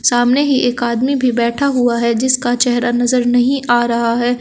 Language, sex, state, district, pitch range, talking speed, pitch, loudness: Hindi, female, Uttar Pradesh, Shamli, 240-255 Hz, 205 wpm, 245 Hz, -14 LUFS